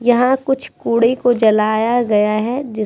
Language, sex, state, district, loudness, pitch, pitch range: Hindi, female, Uttar Pradesh, Budaun, -16 LUFS, 235 Hz, 215-250 Hz